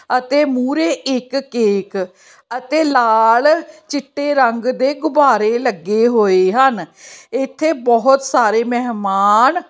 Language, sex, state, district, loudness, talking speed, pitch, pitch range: Punjabi, female, Chandigarh, Chandigarh, -15 LUFS, 110 wpm, 255 Hz, 225-285 Hz